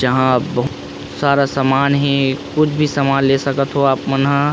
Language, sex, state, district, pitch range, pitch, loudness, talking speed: Chhattisgarhi, male, Chhattisgarh, Rajnandgaon, 135-140 Hz, 135 Hz, -16 LUFS, 185 wpm